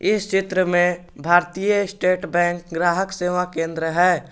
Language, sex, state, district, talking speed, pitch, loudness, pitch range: Hindi, male, Jharkhand, Garhwa, 140 wpm, 180 Hz, -20 LUFS, 175-185 Hz